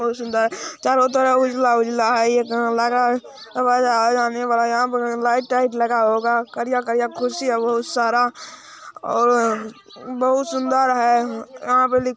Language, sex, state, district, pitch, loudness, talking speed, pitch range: Hindi, male, Bihar, Araria, 240 Hz, -19 LUFS, 130 wpm, 235-255 Hz